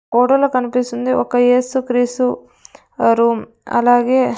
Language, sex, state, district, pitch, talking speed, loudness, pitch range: Telugu, female, Andhra Pradesh, Sri Satya Sai, 245 Hz, 95 wpm, -16 LUFS, 240-255 Hz